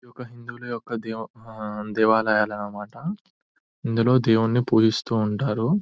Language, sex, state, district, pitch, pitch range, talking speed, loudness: Telugu, male, Telangana, Nalgonda, 115 Hz, 110-125 Hz, 115 wpm, -23 LUFS